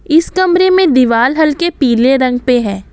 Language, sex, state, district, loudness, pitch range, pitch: Hindi, female, Assam, Kamrup Metropolitan, -11 LUFS, 245-345 Hz, 270 Hz